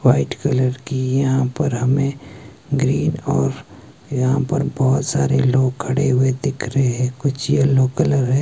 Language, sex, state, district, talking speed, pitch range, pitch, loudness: Hindi, male, Himachal Pradesh, Shimla, 165 wpm, 130-140 Hz, 135 Hz, -19 LUFS